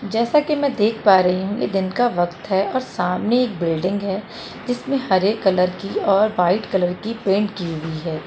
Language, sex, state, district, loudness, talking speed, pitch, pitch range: Hindi, female, Delhi, New Delhi, -20 LUFS, 210 wpm, 195 Hz, 180-225 Hz